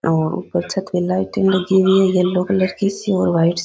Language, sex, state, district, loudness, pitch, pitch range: Rajasthani, female, Rajasthan, Nagaur, -17 LUFS, 185 Hz, 180-190 Hz